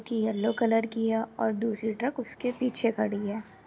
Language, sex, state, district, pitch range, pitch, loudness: Hindi, female, Bihar, Samastipur, 220-235 Hz, 225 Hz, -29 LUFS